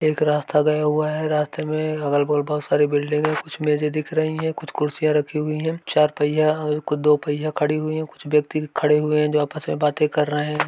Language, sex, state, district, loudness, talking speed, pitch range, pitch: Hindi, male, Uttar Pradesh, Varanasi, -21 LUFS, 235 wpm, 150-155 Hz, 150 Hz